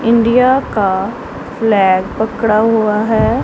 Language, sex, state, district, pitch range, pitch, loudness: Hindi, female, Punjab, Pathankot, 210-230 Hz, 220 Hz, -13 LUFS